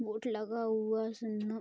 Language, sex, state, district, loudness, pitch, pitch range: Hindi, female, Bihar, Vaishali, -35 LUFS, 220 Hz, 215-225 Hz